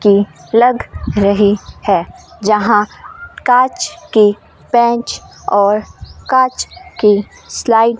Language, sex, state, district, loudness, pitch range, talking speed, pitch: Hindi, female, Rajasthan, Bikaner, -14 LUFS, 205-255 Hz, 100 wpm, 225 Hz